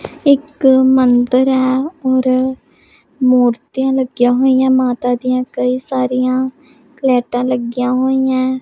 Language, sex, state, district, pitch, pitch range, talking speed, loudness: Punjabi, female, Punjab, Pathankot, 260 Hz, 250-265 Hz, 95 wpm, -14 LUFS